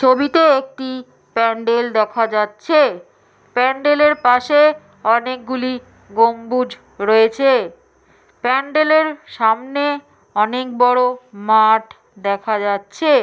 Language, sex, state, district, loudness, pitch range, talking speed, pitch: Bengali, female, West Bengal, Jhargram, -16 LUFS, 220-275 Hz, 75 wpm, 250 Hz